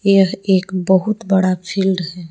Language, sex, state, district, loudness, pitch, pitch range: Hindi, female, Jharkhand, Palamu, -17 LUFS, 190 Hz, 185-195 Hz